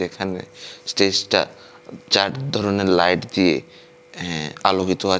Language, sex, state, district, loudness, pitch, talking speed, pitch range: Bengali, male, Tripura, West Tripura, -20 LUFS, 95 Hz, 105 wpm, 90-100 Hz